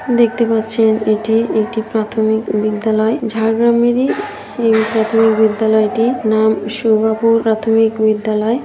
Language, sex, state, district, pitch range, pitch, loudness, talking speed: Bengali, female, West Bengal, Jhargram, 220-225 Hz, 220 Hz, -15 LUFS, 95 wpm